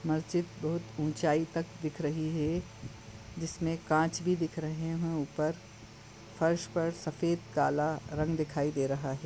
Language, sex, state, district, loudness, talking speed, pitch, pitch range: Hindi, male, Goa, North and South Goa, -33 LUFS, 150 wpm, 155 Hz, 145-165 Hz